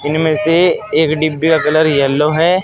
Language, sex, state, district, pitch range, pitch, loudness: Hindi, male, Uttar Pradesh, Saharanpur, 150-160 Hz, 155 Hz, -13 LUFS